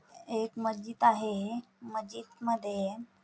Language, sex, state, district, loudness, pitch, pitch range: Marathi, female, Maharashtra, Dhule, -33 LUFS, 225 Hz, 215-235 Hz